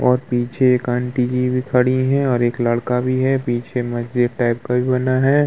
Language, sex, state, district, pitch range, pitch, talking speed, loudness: Hindi, male, Uttar Pradesh, Muzaffarnagar, 120-130 Hz, 125 Hz, 220 wpm, -18 LUFS